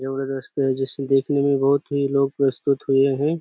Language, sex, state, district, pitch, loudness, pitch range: Hindi, male, Chhattisgarh, Bastar, 140 Hz, -21 LUFS, 135-140 Hz